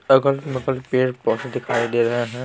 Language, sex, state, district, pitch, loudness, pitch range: Hindi, male, Bihar, Patna, 130 Hz, -21 LUFS, 120-135 Hz